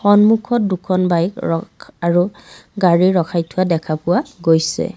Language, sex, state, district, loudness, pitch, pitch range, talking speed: Assamese, female, Assam, Kamrup Metropolitan, -17 LUFS, 180 Hz, 170-205 Hz, 135 wpm